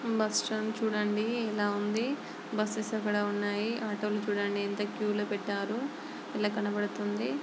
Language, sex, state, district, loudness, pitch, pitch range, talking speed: Telugu, female, Andhra Pradesh, Chittoor, -32 LUFS, 210 Hz, 205-220 Hz, 135 wpm